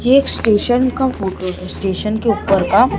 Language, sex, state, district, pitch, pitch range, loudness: Hindi, male, Maharashtra, Mumbai Suburban, 220 Hz, 190-255 Hz, -16 LUFS